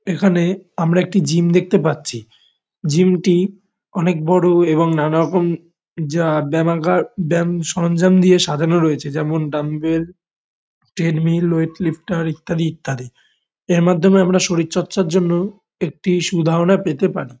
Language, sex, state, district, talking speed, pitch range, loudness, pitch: Bengali, male, West Bengal, Malda, 130 wpm, 160-180 Hz, -17 LUFS, 170 Hz